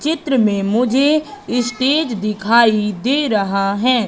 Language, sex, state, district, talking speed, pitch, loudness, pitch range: Hindi, female, Madhya Pradesh, Katni, 115 wpm, 245 Hz, -16 LUFS, 210-275 Hz